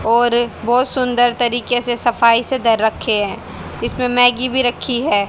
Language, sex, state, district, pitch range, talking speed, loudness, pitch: Hindi, female, Haryana, Charkhi Dadri, 230-245 Hz, 170 wpm, -16 LUFS, 240 Hz